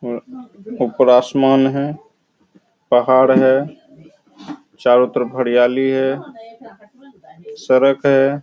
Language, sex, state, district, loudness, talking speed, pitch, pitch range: Hindi, male, Bihar, Araria, -15 LUFS, 85 wpm, 135 Hz, 130-205 Hz